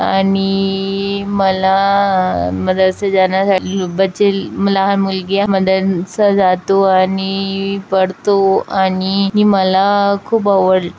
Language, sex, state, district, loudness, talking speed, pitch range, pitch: Marathi, female, Maharashtra, Chandrapur, -14 LUFS, 100 wpm, 190-200 Hz, 195 Hz